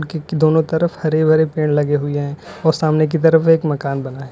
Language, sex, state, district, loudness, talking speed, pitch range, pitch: Hindi, male, Uttar Pradesh, Lalitpur, -16 LUFS, 220 wpm, 145-160 Hz, 155 Hz